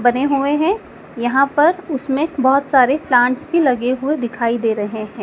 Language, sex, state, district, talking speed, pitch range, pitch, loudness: Hindi, female, Madhya Pradesh, Dhar, 195 wpm, 245-290 Hz, 265 Hz, -17 LUFS